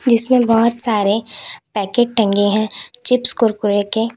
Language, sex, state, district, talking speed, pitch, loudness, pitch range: Hindi, female, Uttar Pradesh, Lalitpur, 130 wpm, 225 Hz, -16 LUFS, 205-240 Hz